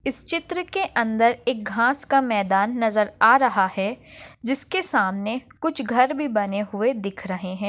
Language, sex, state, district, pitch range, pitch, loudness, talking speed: Hindi, female, Maharashtra, Nagpur, 205-270 Hz, 235 Hz, -22 LUFS, 170 wpm